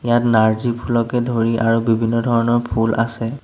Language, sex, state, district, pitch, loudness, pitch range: Assamese, male, Assam, Sonitpur, 115 Hz, -18 LUFS, 115-120 Hz